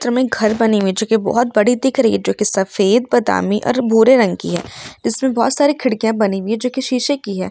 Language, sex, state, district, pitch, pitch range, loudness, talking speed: Hindi, female, Bihar, Sitamarhi, 230 Hz, 210-255 Hz, -16 LUFS, 280 wpm